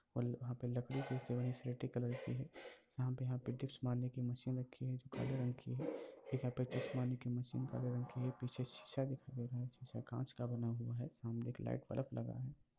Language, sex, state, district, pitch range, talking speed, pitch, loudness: Hindi, male, Bihar, Lakhisarai, 120-130 Hz, 220 wpm, 125 Hz, -44 LUFS